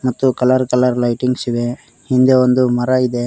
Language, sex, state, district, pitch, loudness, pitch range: Kannada, male, Karnataka, Koppal, 125 Hz, -15 LUFS, 120-130 Hz